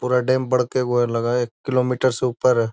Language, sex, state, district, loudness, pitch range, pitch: Magahi, male, Bihar, Gaya, -20 LUFS, 120-130 Hz, 125 Hz